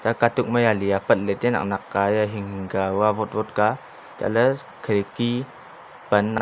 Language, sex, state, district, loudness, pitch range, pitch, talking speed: Wancho, male, Arunachal Pradesh, Longding, -23 LUFS, 100-120 Hz, 105 Hz, 185 wpm